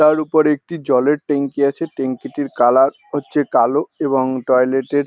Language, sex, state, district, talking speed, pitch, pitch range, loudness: Bengali, male, West Bengal, North 24 Parganas, 175 wpm, 140 Hz, 130-150 Hz, -17 LUFS